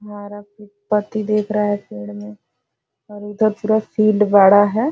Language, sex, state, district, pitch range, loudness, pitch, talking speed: Hindi, female, Bihar, Jahanabad, 205-215 Hz, -16 LUFS, 210 Hz, 170 wpm